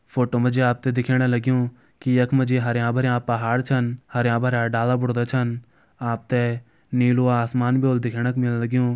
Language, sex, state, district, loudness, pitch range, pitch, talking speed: Garhwali, male, Uttarakhand, Uttarkashi, -22 LUFS, 120-125 Hz, 125 Hz, 200 wpm